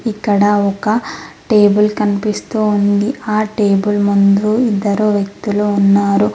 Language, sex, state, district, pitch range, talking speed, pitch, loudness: Telugu, female, Telangana, Mahabubabad, 200-215 Hz, 105 wpm, 205 Hz, -14 LUFS